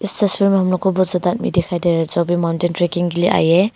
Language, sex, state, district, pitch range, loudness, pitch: Hindi, female, Arunachal Pradesh, Longding, 175-190 Hz, -16 LUFS, 175 Hz